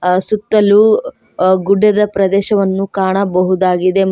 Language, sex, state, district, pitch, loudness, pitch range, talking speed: Kannada, female, Karnataka, Koppal, 195 Hz, -13 LUFS, 185-210 Hz, 100 wpm